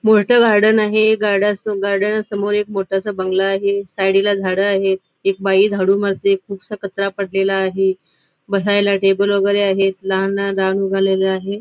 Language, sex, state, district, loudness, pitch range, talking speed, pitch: Marathi, female, Goa, North and South Goa, -16 LUFS, 195-205 Hz, 165 wpm, 195 Hz